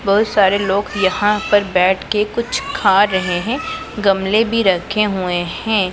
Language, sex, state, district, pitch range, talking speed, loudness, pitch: Hindi, female, Punjab, Pathankot, 190-215 Hz, 150 wpm, -16 LUFS, 205 Hz